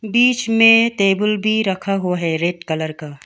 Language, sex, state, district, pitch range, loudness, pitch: Hindi, female, Arunachal Pradesh, Longding, 170-225 Hz, -16 LUFS, 195 Hz